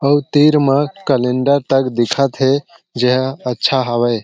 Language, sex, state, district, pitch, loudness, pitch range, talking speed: Chhattisgarhi, male, Chhattisgarh, Jashpur, 135 Hz, -15 LUFS, 125-140 Hz, 140 wpm